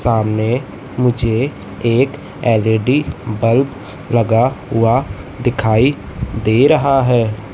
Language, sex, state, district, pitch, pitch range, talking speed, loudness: Hindi, male, Madhya Pradesh, Katni, 115 Hz, 110-135 Hz, 85 wpm, -16 LUFS